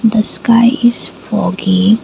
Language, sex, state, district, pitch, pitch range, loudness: English, female, Assam, Kamrup Metropolitan, 220 Hz, 200-235 Hz, -12 LUFS